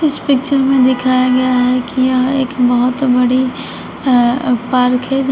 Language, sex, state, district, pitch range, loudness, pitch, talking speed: Hindi, female, Uttar Pradesh, Shamli, 250-270 Hz, -13 LUFS, 255 Hz, 170 wpm